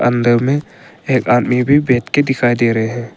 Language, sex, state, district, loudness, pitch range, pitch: Hindi, male, Arunachal Pradesh, Longding, -14 LUFS, 120-135 Hz, 125 Hz